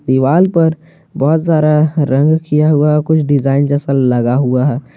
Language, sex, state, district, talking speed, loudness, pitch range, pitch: Hindi, male, Jharkhand, Garhwa, 170 wpm, -12 LUFS, 135-160 Hz, 150 Hz